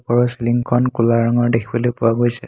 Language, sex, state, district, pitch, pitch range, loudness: Assamese, male, Assam, Hailakandi, 120 Hz, 115-120 Hz, -17 LUFS